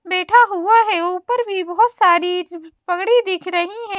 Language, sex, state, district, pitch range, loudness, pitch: Hindi, female, Chhattisgarh, Raipur, 355-455 Hz, -16 LUFS, 370 Hz